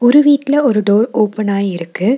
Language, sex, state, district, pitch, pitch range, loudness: Tamil, female, Tamil Nadu, Nilgiris, 220 Hz, 205-275 Hz, -14 LUFS